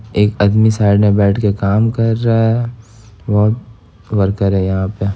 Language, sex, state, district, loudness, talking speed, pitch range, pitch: Hindi, male, Bihar, Gopalganj, -14 LUFS, 160 wpm, 100-110 Hz, 105 Hz